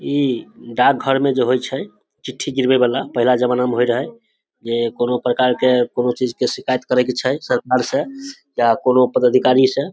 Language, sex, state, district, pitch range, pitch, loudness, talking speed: Maithili, male, Bihar, Samastipur, 125-135 Hz, 125 Hz, -17 LUFS, 195 wpm